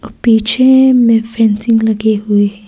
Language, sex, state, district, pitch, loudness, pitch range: Hindi, female, Arunachal Pradesh, Papum Pare, 225 Hz, -11 LUFS, 215-230 Hz